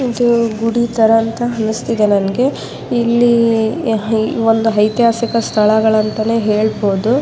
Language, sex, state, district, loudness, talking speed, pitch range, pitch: Kannada, female, Karnataka, Raichur, -14 LUFS, 90 wpm, 215-235 Hz, 225 Hz